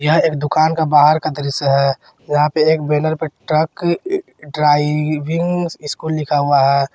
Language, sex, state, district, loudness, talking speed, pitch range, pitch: Hindi, male, Jharkhand, Garhwa, -16 LUFS, 165 wpm, 145-160 Hz, 150 Hz